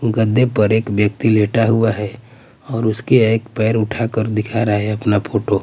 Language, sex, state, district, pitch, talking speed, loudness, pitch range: Hindi, male, Bihar, Patna, 110 Hz, 190 wpm, -17 LUFS, 105-115 Hz